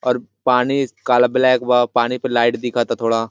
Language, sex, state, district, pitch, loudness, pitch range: Hindi, male, Jharkhand, Sahebganj, 125 Hz, -17 LUFS, 120-125 Hz